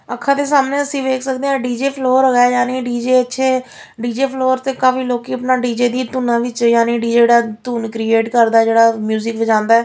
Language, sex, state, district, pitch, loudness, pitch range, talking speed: Punjabi, female, Punjab, Fazilka, 245 Hz, -15 LUFS, 235-260 Hz, 200 wpm